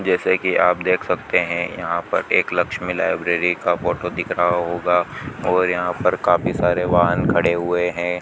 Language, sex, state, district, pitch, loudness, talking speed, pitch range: Hindi, male, Rajasthan, Bikaner, 90 Hz, -19 LUFS, 180 wpm, 85-90 Hz